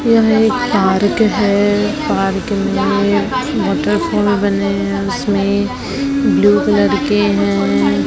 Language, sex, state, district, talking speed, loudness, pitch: Hindi, male, Chhattisgarh, Raipur, 110 wpm, -14 LUFS, 200 Hz